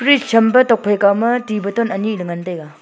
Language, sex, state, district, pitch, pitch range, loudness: Wancho, female, Arunachal Pradesh, Longding, 215 Hz, 195-235 Hz, -16 LUFS